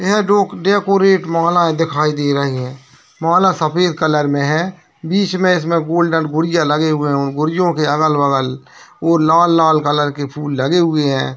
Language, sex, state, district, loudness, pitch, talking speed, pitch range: Hindi, male, Bihar, Jahanabad, -15 LUFS, 160 Hz, 170 wpm, 145-175 Hz